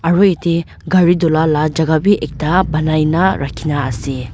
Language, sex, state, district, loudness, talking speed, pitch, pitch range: Nagamese, female, Nagaland, Dimapur, -15 LUFS, 180 wpm, 160 Hz, 150-175 Hz